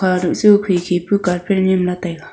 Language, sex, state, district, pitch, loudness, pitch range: Wancho, female, Arunachal Pradesh, Longding, 180 Hz, -16 LUFS, 180-190 Hz